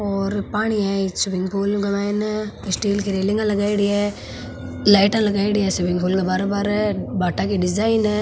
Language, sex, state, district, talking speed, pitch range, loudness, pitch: Marwari, female, Rajasthan, Nagaur, 175 wpm, 195-210 Hz, -20 LUFS, 200 Hz